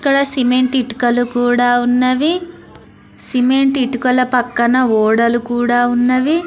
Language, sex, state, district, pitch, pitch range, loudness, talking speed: Telugu, female, Telangana, Mahabubabad, 250 Hz, 245-260 Hz, -14 LUFS, 100 wpm